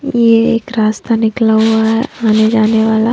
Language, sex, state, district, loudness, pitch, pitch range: Hindi, female, Maharashtra, Mumbai Suburban, -12 LUFS, 225 Hz, 220-230 Hz